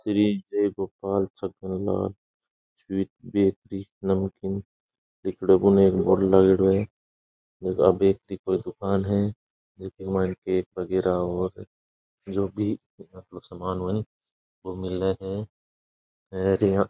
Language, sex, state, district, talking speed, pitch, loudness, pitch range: Rajasthani, male, Rajasthan, Nagaur, 110 wpm, 95 Hz, -25 LUFS, 95-100 Hz